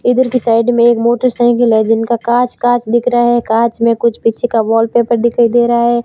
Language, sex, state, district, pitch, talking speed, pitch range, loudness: Hindi, female, Rajasthan, Barmer, 235 Hz, 230 wpm, 230-240 Hz, -12 LUFS